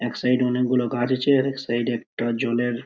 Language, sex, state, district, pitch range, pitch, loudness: Bengali, male, West Bengal, Purulia, 120-125 Hz, 120 Hz, -23 LUFS